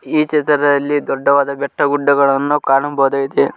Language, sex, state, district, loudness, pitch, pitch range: Kannada, male, Karnataka, Koppal, -15 LUFS, 140 Hz, 140-145 Hz